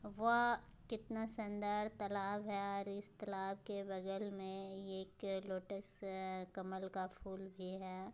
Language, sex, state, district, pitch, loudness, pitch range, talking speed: Hindi, female, Bihar, Muzaffarpur, 195 Hz, -43 LUFS, 190-205 Hz, 140 wpm